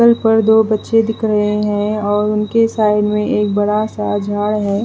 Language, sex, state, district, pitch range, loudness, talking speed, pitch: Hindi, female, Bihar, West Champaran, 210-220 Hz, -15 LUFS, 200 wpm, 210 Hz